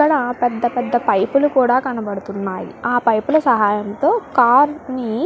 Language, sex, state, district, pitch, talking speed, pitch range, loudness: Telugu, female, Andhra Pradesh, Krishna, 245 Hz, 125 wpm, 220-275 Hz, -17 LUFS